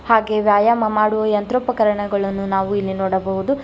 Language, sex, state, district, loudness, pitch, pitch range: Kannada, female, Karnataka, Bangalore, -18 LUFS, 210 Hz, 195-220 Hz